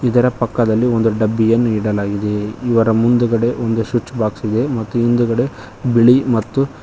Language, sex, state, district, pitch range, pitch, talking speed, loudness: Kannada, male, Karnataka, Koppal, 110-120 Hz, 115 Hz, 125 wpm, -16 LUFS